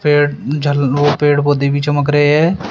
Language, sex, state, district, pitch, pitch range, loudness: Hindi, male, Uttar Pradesh, Shamli, 145 Hz, 145-150 Hz, -14 LUFS